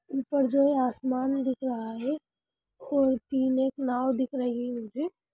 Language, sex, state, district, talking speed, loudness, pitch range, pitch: Hindi, female, Bihar, Darbhanga, 145 wpm, -28 LUFS, 255-275 Hz, 260 Hz